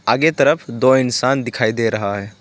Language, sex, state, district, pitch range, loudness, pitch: Hindi, male, West Bengal, Alipurduar, 110-130 Hz, -17 LUFS, 120 Hz